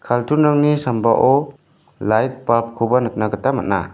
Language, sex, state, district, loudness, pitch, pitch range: Garo, male, Meghalaya, West Garo Hills, -17 LUFS, 125 Hz, 115-145 Hz